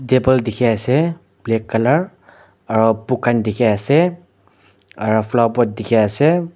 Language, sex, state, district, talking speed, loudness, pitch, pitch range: Nagamese, male, Nagaland, Dimapur, 110 wpm, -17 LUFS, 115 Hz, 110-130 Hz